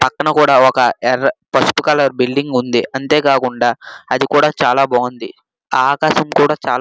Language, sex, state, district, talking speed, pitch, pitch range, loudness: Telugu, male, Andhra Pradesh, Srikakulam, 160 wpm, 135 Hz, 125-150 Hz, -14 LUFS